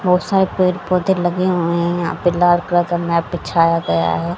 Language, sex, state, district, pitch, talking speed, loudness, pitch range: Hindi, female, Haryana, Jhajjar, 175 Hz, 220 wpm, -17 LUFS, 170-180 Hz